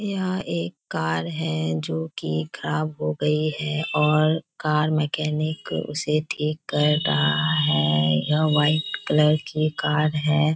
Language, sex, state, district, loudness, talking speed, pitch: Hindi, female, Bihar, Kishanganj, -23 LUFS, 135 wpm, 150 Hz